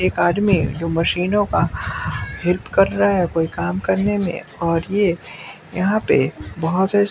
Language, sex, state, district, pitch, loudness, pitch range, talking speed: Hindi, male, Bihar, West Champaran, 180 Hz, -19 LUFS, 165-200 Hz, 160 wpm